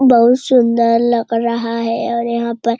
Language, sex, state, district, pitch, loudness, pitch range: Hindi, female, Bihar, Jamui, 235 Hz, -15 LUFS, 230-235 Hz